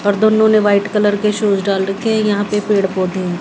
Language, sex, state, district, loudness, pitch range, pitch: Hindi, female, Haryana, Jhajjar, -15 LUFS, 195-210 Hz, 205 Hz